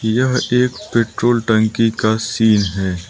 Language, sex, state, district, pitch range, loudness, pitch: Hindi, male, Arunachal Pradesh, Lower Dibang Valley, 110-120 Hz, -16 LUFS, 115 Hz